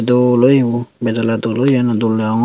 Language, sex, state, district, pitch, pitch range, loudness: Chakma, female, Tripura, Unakoti, 120 Hz, 115-125 Hz, -15 LUFS